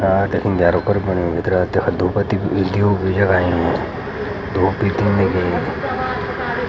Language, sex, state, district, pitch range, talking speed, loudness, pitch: Garhwali, male, Uttarakhand, Uttarkashi, 90-100 Hz, 150 wpm, -18 LUFS, 95 Hz